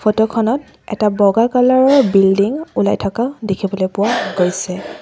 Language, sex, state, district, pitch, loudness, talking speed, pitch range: Assamese, female, Assam, Sonitpur, 215 Hz, -15 LUFS, 145 wpm, 195-245 Hz